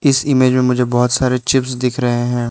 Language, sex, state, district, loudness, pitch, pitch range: Hindi, male, Arunachal Pradesh, Lower Dibang Valley, -15 LUFS, 125 Hz, 125-130 Hz